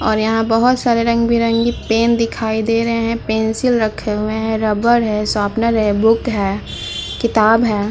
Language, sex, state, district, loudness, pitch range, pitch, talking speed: Hindi, female, Uttar Pradesh, Muzaffarnagar, -16 LUFS, 220-230 Hz, 225 Hz, 175 wpm